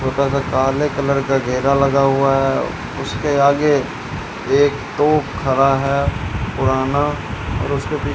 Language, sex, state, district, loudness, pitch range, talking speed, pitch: Hindi, male, Rajasthan, Bikaner, -18 LUFS, 135-140 Hz, 145 wpm, 140 Hz